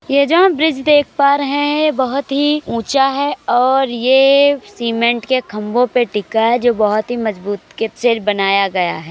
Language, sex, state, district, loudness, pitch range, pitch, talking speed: Hindi, male, Uttar Pradesh, Jyotiba Phule Nagar, -15 LUFS, 225-280 Hz, 250 Hz, 195 wpm